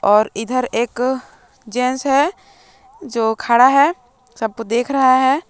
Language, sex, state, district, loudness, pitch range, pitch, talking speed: Hindi, female, Jharkhand, Palamu, -17 LUFS, 235-275 Hz, 255 Hz, 130 wpm